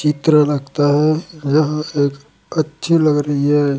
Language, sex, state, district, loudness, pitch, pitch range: Hindi, male, Chhattisgarh, Raipur, -16 LUFS, 150 Hz, 145-155 Hz